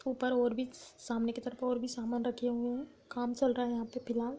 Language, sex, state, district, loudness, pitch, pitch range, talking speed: Hindi, female, Uttar Pradesh, Budaun, -35 LUFS, 245 Hz, 240-250 Hz, 285 wpm